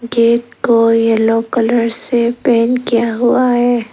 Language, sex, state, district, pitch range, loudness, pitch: Hindi, female, Arunachal Pradesh, Lower Dibang Valley, 230-240 Hz, -13 LUFS, 235 Hz